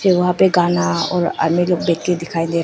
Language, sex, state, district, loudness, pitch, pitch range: Hindi, female, Arunachal Pradesh, Papum Pare, -17 LUFS, 175 Hz, 170-180 Hz